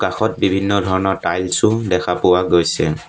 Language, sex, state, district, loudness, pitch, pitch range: Assamese, male, Assam, Sonitpur, -17 LUFS, 95 Hz, 90-95 Hz